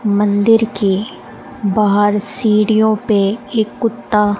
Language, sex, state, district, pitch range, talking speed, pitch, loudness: Hindi, female, Rajasthan, Bikaner, 205-220 Hz, 95 wpm, 210 Hz, -15 LUFS